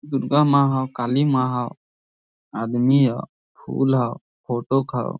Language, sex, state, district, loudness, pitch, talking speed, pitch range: Hindi, male, Jharkhand, Sahebganj, -21 LUFS, 130 Hz, 140 wpm, 120-135 Hz